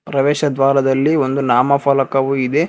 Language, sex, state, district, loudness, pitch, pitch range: Kannada, male, Karnataka, Bangalore, -15 LUFS, 135 Hz, 135-145 Hz